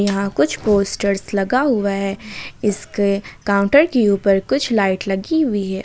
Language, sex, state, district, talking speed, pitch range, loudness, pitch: Hindi, female, Jharkhand, Ranchi, 155 wpm, 195-215 Hz, -18 LUFS, 200 Hz